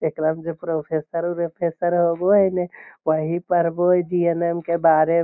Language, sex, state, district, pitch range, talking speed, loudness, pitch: Magahi, male, Bihar, Lakhisarai, 165-175 Hz, 160 wpm, -21 LUFS, 170 Hz